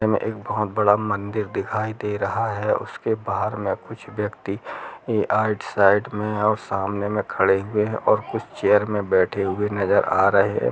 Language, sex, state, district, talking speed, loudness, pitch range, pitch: Hindi, male, Chhattisgarh, Rajnandgaon, 195 wpm, -22 LUFS, 100-110 Hz, 105 Hz